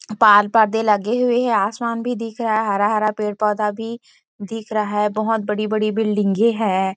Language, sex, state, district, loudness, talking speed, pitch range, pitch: Hindi, female, Chhattisgarh, Rajnandgaon, -19 LUFS, 200 wpm, 210-225 Hz, 215 Hz